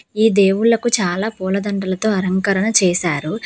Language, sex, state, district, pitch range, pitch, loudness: Telugu, female, Telangana, Hyderabad, 185-215 Hz, 195 Hz, -17 LUFS